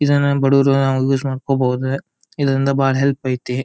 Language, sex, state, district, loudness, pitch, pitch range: Kannada, male, Karnataka, Dharwad, -17 LUFS, 135 Hz, 130-140 Hz